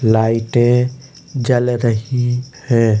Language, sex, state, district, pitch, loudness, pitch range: Hindi, male, Uttar Pradesh, Hamirpur, 120 Hz, -16 LUFS, 115-125 Hz